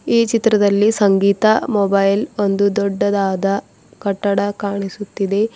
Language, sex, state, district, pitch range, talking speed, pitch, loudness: Kannada, female, Karnataka, Bidar, 200-210 Hz, 85 wpm, 200 Hz, -17 LUFS